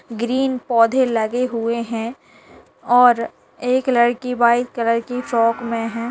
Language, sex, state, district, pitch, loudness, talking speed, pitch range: Hindi, female, Bihar, Kishanganj, 235 Hz, -18 LUFS, 140 wpm, 230-250 Hz